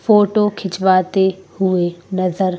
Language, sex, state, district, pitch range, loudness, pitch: Hindi, female, Madhya Pradesh, Bhopal, 185-195 Hz, -17 LUFS, 190 Hz